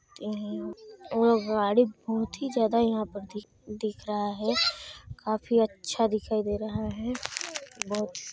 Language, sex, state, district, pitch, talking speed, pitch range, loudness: Hindi, female, Chhattisgarh, Sarguja, 215 Hz, 110 wpm, 210-235 Hz, -28 LUFS